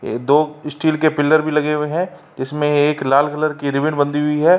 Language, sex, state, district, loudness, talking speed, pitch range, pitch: Hindi, male, Uttar Pradesh, Varanasi, -17 LUFS, 235 wpm, 145-155 Hz, 150 Hz